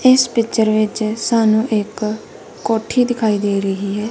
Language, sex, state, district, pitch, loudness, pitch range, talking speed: Punjabi, female, Punjab, Kapurthala, 220 Hz, -17 LUFS, 210-230 Hz, 160 wpm